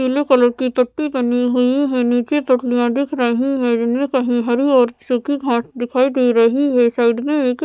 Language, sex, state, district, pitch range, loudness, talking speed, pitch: Hindi, female, Maharashtra, Mumbai Suburban, 240-270 Hz, -17 LUFS, 205 wpm, 250 Hz